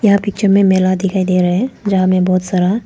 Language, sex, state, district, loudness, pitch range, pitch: Hindi, female, Arunachal Pradesh, Lower Dibang Valley, -14 LUFS, 185-200 Hz, 190 Hz